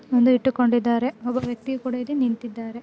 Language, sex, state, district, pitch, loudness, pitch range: Kannada, female, Karnataka, Dakshina Kannada, 245 Hz, -23 LUFS, 235-255 Hz